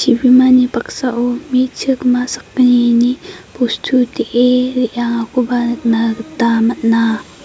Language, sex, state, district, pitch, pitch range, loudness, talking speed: Garo, female, Meghalaya, South Garo Hills, 245 Hz, 235-255 Hz, -14 LUFS, 80 wpm